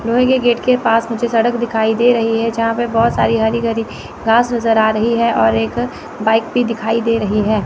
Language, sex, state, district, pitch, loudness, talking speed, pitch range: Hindi, female, Chandigarh, Chandigarh, 230 Hz, -15 LUFS, 235 wpm, 225-240 Hz